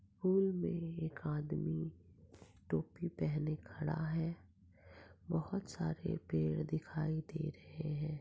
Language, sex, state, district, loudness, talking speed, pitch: Hindi, female, Maharashtra, Pune, -39 LUFS, 95 wpm, 150 Hz